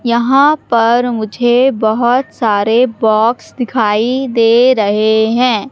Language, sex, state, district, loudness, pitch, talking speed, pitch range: Hindi, female, Madhya Pradesh, Katni, -12 LUFS, 235 Hz, 105 wpm, 220-250 Hz